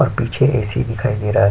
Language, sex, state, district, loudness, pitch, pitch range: Hindi, male, Uttar Pradesh, Jyotiba Phule Nagar, -18 LUFS, 120 Hz, 105-130 Hz